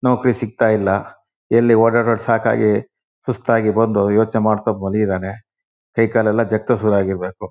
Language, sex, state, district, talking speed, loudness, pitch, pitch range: Kannada, male, Karnataka, Shimoga, 105 wpm, -17 LUFS, 110 Hz, 105-115 Hz